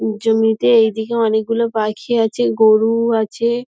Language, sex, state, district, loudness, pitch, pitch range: Bengali, female, West Bengal, Dakshin Dinajpur, -16 LUFS, 225 Hz, 220-230 Hz